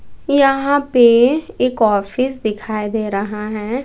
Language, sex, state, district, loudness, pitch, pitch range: Hindi, female, Bihar, West Champaran, -16 LUFS, 235 Hz, 215-270 Hz